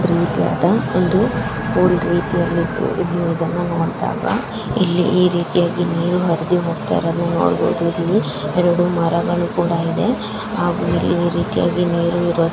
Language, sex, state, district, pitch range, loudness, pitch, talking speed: Kannada, female, Karnataka, Raichur, 170-175 Hz, -18 LUFS, 175 Hz, 110 wpm